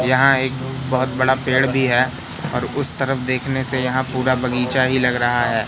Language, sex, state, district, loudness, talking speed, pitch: Hindi, male, Madhya Pradesh, Katni, -19 LUFS, 200 wpm, 130 Hz